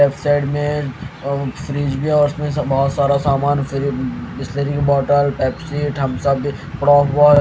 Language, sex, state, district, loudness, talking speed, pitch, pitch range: Hindi, male, Haryana, Jhajjar, -18 LUFS, 160 wpm, 140 Hz, 140-145 Hz